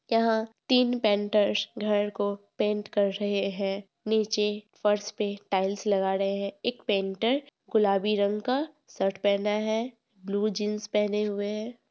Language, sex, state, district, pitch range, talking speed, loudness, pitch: Hindi, female, Bihar, Purnia, 200-220 Hz, 155 wpm, -28 LUFS, 210 Hz